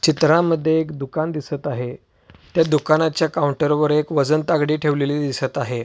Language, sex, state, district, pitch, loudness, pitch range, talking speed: Marathi, male, Maharashtra, Solapur, 150 Hz, -20 LUFS, 145-160 Hz, 155 wpm